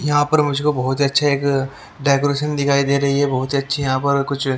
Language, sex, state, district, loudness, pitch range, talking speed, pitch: Hindi, male, Haryana, Jhajjar, -18 LUFS, 135-145 Hz, 260 wpm, 140 Hz